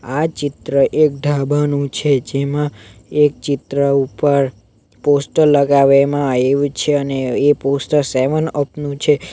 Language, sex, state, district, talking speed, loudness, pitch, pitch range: Gujarati, male, Gujarat, Navsari, 130 wpm, -16 LUFS, 140 Hz, 135-145 Hz